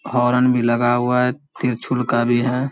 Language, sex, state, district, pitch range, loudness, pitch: Hindi, male, Bihar, Samastipur, 120-125 Hz, -18 LUFS, 125 Hz